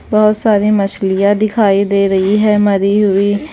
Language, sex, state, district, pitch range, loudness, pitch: Hindi, female, Bihar, West Champaran, 200-215 Hz, -12 LUFS, 205 Hz